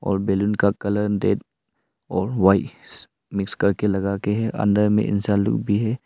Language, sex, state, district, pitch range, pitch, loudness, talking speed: Hindi, male, Arunachal Pradesh, Longding, 100-105 Hz, 100 Hz, -21 LUFS, 180 wpm